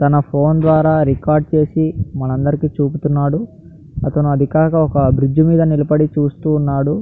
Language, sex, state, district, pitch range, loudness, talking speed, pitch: Telugu, male, Andhra Pradesh, Anantapur, 140-155 Hz, -15 LUFS, 130 wpm, 150 Hz